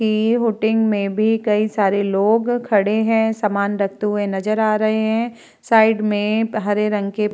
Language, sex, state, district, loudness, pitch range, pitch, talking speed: Hindi, female, Bihar, Vaishali, -18 LUFS, 205-220 Hz, 215 Hz, 180 wpm